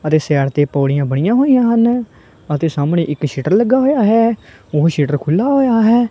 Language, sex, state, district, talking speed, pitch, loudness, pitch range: Punjabi, male, Punjab, Kapurthala, 205 wpm, 165 Hz, -14 LUFS, 145-235 Hz